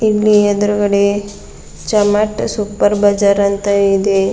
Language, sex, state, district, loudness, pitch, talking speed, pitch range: Kannada, female, Karnataka, Bidar, -14 LUFS, 205 Hz, 95 wpm, 200-210 Hz